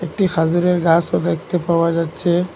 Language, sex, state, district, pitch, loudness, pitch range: Bengali, male, Assam, Hailakandi, 170 Hz, -17 LUFS, 165-175 Hz